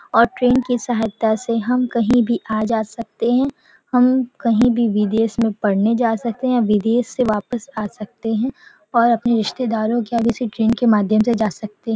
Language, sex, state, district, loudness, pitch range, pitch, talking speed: Hindi, female, Uttar Pradesh, Varanasi, -18 LUFS, 220-245 Hz, 230 Hz, 200 wpm